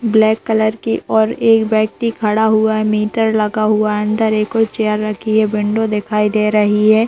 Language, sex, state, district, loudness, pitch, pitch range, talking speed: Hindi, female, Chhattisgarh, Raigarh, -15 LUFS, 215 Hz, 215-220 Hz, 205 wpm